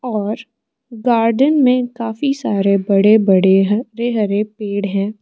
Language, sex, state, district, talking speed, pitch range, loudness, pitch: Hindi, female, Arunachal Pradesh, Lower Dibang Valley, 125 wpm, 200-240 Hz, -16 LUFS, 220 Hz